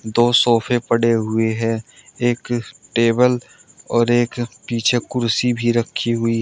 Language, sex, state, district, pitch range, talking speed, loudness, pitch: Hindi, male, Uttar Pradesh, Shamli, 115-120 Hz, 140 wpm, -19 LUFS, 120 Hz